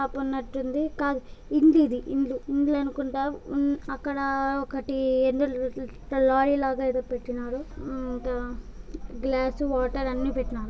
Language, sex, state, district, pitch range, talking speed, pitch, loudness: Telugu, female, Andhra Pradesh, Anantapur, 255-280 Hz, 135 wpm, 270 Hz, -27 LUFS